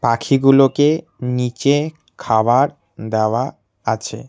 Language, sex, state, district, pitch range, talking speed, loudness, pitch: Bengali, male, West Bengal, Cooch Behar, 115-145 Hz, 70 wpm, -17 LUFS, 125 Hz